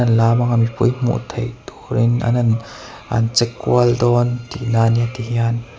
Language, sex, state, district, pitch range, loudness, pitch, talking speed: Mizo, male, Mizoram, Aizawl, 115-120 Hz, -18 LUFS, 120 Hz, 155 wpm